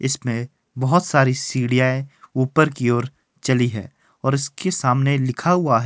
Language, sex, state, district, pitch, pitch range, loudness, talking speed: Hindi, male, Himachal Pradesh, Shimla, 130 Hz, 125-140 Hz, -20 LUFS, 155 wpm